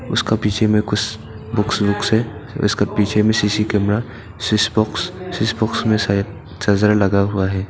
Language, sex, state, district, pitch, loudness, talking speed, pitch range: Hindi, male, Arunachal Pradesh, Papum Pare, 105 Hz, -18 LUFS, 170 wpm, 100-110 Hz